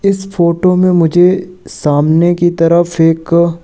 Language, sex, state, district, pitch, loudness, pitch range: Hindi, male, Madhya Pradesh, Katni, 170 Hz, -11 LUFS, 165-180 Hz